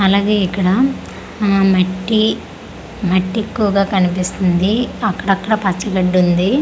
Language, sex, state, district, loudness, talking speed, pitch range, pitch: Telugu, female, Andhra Pradesh, Manyam, -16 LUFS, 120 wpm, 185-210 Hz, 195 Hz